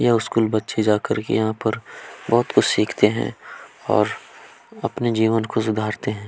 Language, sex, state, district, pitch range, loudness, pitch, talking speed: Hindi, male, Chhattisgarh, Kabirdham, 110-115 Hz, -21 LUFS, 110 Hz, 165 wpm